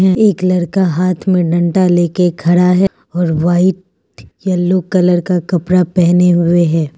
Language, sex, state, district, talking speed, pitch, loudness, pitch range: Hindi, female, Mizoram, Aizawl, 145 wpm, 180 Hz, -13 LUFS, 175-185 Hz